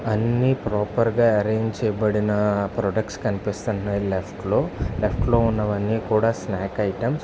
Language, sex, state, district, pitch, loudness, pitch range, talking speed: Telugu, male, Andhra Pradesh, Visakhapatnam, 105 Hz, -23 LUFS, 105-115 Hz, 140 wpm